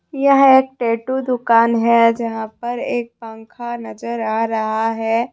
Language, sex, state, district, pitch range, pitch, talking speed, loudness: Hindi, female, Jharkhand, Deoghar, 225-245 Hz, 235 Hz, 145 wpm, -17 LUFS